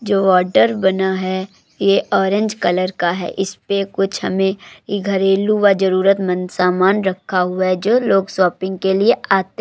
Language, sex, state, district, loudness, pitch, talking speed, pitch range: Hindi, female, Uttar Pradesh, Muzaffarnagar, -17 LUFS, 190 Hz, 170 wpm, 185-195 Hz